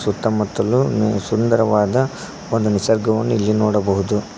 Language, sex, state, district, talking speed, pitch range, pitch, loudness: Kannada, male, Karnataka, Koppal, 80 wpm, 105-115 Hz, 110 Hz, -18 LUFS